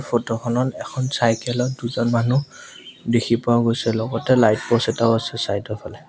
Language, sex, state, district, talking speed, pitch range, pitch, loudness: Assamese, male, Assam, Sonitpur, 175 wpm, 115-125 Hz, 120 Hz, -20 LUFS